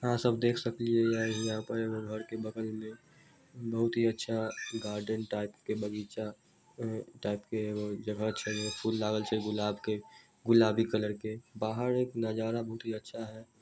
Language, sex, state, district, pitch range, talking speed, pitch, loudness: Maithili, male, Bihar, Samastipur, 110-115 Hz, 185 wpm, 110 Hz, -34 LUFS